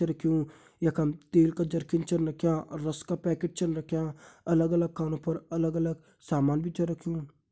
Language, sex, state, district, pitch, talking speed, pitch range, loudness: Hindi, male, Uttarakhand, Uttarkashi, 165 Hz, 185 wpm, 155-170 Hz, -29 LUFS